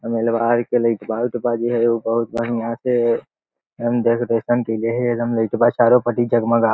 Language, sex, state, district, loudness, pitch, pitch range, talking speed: Magahi, male, Bihar, Lakhisarai, -19 LUFS, 115 Hz, 115-120 Hz, 115 wpm